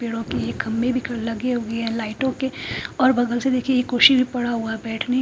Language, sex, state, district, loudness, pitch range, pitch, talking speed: Hindi, female, Punjab, Fazilka, -21 LUFS, 230-255 Hz, 240 Hz, 230 wpm